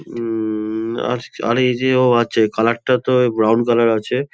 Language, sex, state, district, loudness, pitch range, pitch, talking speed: Bengali, male, West Bengal, Kolkata, -17 LUFS, 110-125 Hz, 115 Hz, 180 wpm